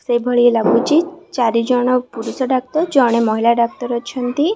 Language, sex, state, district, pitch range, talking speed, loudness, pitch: Odia, female, Odisha, Khordha, 235-265 Hz, 130 wpm, -16 LUFS, 245 Hz